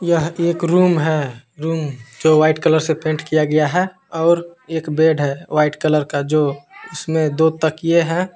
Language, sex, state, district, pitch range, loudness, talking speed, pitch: Hindi, male, Jharkhand, Palamu, 150-170 Hz, -17 LUFS, 170 wpm, 160 Hz